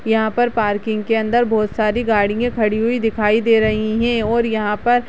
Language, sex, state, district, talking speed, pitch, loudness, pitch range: Hindi, female, Uttarakhand, Uttarkashi, 210 wpm, 220 Hz, -17 LUFS, 215-235 Hz